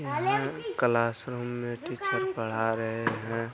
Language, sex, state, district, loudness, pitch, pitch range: Hindi, male, Bihar, Araria, -30 LUFS, 115 Hz, 115-120 Hz